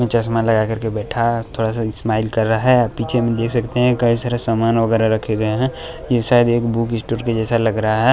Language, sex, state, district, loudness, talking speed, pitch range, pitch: Hindi, male, Bihar, West Champaran, -18 LUFS, 260 wpm, 110-120 Hz, 115 Hz